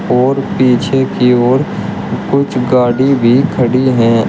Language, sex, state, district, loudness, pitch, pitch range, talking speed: Hindi, male, Uttar Pradesh, Shamli, -12 LUFS, 125 Hz, 125-135 Hz, 125 wpm